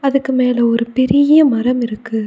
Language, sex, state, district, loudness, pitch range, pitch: Tamil, female, Tamil Nadu, Nilgiris, -14 LUFS, 235-275 Hz, 250 Hz